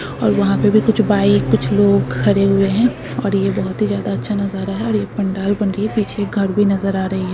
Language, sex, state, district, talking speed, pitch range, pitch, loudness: Hindi, female, Andhra Pradesh, Guntur, 205 wpm, 195-205 Hz, 200 Hz, -17 LUFS